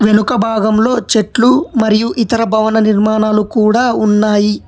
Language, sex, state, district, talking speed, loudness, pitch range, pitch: Telugu, male, Telangana, Hyderabad, 115 wpm, -12 LUFS, 215-230 Hz, 220 Hz